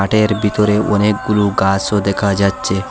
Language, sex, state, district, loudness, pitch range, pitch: Bengali, male, Assam, Hailakandi, -15 LUFS, 100-105 Hz, 105 Hz